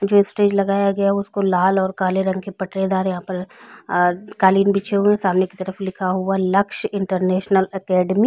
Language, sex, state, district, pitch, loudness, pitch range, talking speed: Hindi, female, Chhattisgarh, Raigarh, 190 Hz, -19 LUFS, 185-200 Hz, 225 wpm